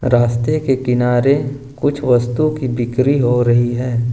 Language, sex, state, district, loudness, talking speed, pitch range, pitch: Hindi, male, Jharkhand, Ranchi, -16 LUFS, 145 wpm, 120-135 Hz, 125 Hz